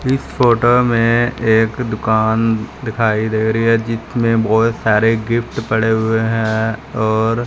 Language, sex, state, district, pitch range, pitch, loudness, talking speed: Hindi, male, Punjab, Fazilka, 110-115 Hz, 115 Hz, -16 LUFS, 135 wpm